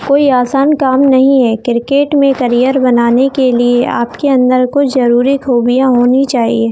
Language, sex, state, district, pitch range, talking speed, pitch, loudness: Hindi, female, Chhattisgarh, Bilaspur, 245-275 Hz, 160 wpm, 255 Hz, -10 LUFS